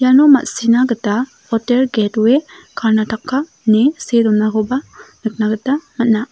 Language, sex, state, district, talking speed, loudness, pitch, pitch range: Garo, female, Meghalaya, South Garo Hills, 125 wpm, -15 LUFS, 235 Hz, 220-265 Hz